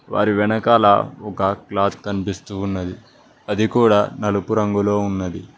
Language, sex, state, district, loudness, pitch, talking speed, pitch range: Telugu, male, Telangana, Mahabubabad, -19 LUFS, 100 Hz, 120 wpm, 100-105 Hz